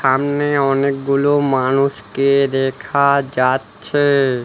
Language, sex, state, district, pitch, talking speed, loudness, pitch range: Bengali, male, West Bengal, Alipurduar, 135 Hz, 65 wpm, -16 LUFS, 130-140 Hz